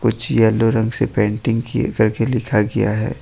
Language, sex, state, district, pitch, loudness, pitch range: Hindi, male, Jharkhand, Ranchi, 115 Hz, -18 LUFS, 110-120 Hz